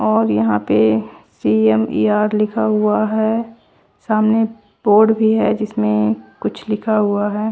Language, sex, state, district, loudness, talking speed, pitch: Hindi, female, Chandigarh, Chandigarh, -16 LUFS, 130 wpm, 210 Hz